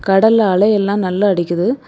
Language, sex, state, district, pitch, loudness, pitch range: Tamil, female, Tamil Nadu, Kanyakumari, 200 Hz, -14 LUFS, 190-215 Hz